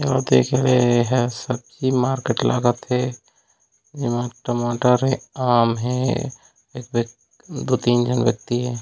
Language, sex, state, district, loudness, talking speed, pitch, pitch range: Chhattisgarhi, male, Chhattisgarh, Raigarh, -20 LUFS, 135 wpm, 125 Hz, 120-130 Hz